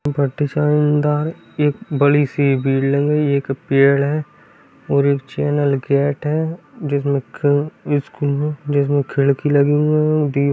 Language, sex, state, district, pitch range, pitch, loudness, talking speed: Hindi, male, Bihar, Darbhanga, 140-150 Hz, 145 Hz, -18 LUFS, 115 wpm